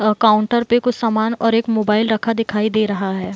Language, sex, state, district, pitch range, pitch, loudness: Hindi, female, Bihar, Gopalganj, 210-230 Hz, 220 Hz, -17 LUFS